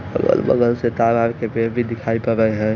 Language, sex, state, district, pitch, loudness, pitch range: Maithili, male, Bihar, Samastipur, 115 Hz, -19 LUFS, 115-120 Hz